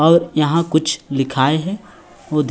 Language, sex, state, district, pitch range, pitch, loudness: Chhattisgarhi, male, Chhattisgarh, Raigarh, 150-165 Hz, 155 Hz, -18 LUFS